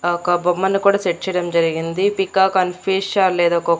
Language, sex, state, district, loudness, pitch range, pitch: Telugu, female, Andhra Pradesh, Annamaya, -18 LUFS, 170-190 Hz, 180 Hz